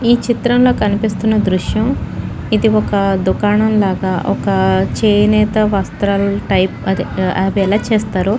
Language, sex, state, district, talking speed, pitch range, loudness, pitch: Telugu, female, Telangana, Nalgonda, 115 wpm, 190-215 Hz, -15 LUFS, 205 Hz